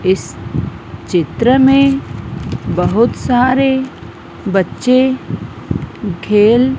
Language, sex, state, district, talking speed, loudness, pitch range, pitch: Hindi, female, Madhya Pradesh, Dhar, 60 wpm, -14 LUFS, 205-265 Hz, 250 Hz